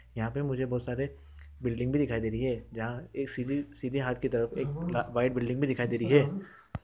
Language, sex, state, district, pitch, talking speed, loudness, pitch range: Hindi, male, Uttar Pradesh, Deoria, 125 Hz, 210 wpm, -31 LUFS, 115-140 Hz